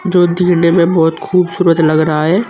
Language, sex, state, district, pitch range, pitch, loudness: Hindi, male, Uttar Pradesh, Saharanpur, 165-180 Hz, 170 Hz, -12 LUFS